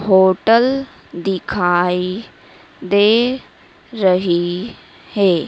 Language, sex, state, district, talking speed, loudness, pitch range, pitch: Hindi, female, Madhya Pradesh, Dhar, 55 wpm, -16 LUFS, 180-225 Hz, 190 Hz